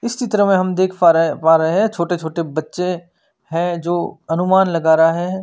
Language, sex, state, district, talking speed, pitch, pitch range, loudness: Hindi, male, Chandigarh, Chandigarh, 210 wpm, 175 Hz, 165-185 Hz, -17 LUFS